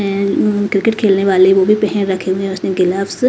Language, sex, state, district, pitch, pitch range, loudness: Hindi, female, Bihar, Katihar, 195 Hz, 190-205 Hz, -14 LUFS